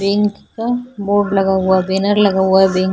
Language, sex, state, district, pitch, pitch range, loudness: Hindi, female, Maharashtra, Chandrapur, 195 Hz, 190-205 Hz, -15 LUFS